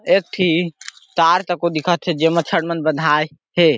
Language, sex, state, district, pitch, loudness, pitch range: Chhattisgarhi, male, Chhattisgarh, Sarguja, 165 Hz, -18 LUFS, 155-175 Hz